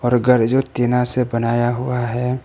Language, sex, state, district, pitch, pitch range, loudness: Hindi, male, Arunachal Pradesh, Papum Pare, 125 Hz, 120-125 Hz, -18 LUFS